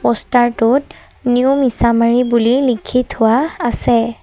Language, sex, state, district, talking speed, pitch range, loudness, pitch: Assamese, female, Assam, Sonitpur, 115 wpm, 230-255 Hz, -14 LUFS, 240 Hz